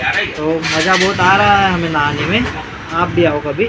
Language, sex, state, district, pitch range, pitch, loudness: Hindi, male, Maharashtra, Gondia, 155-185 Hz, 165 Hz, -14 LUFS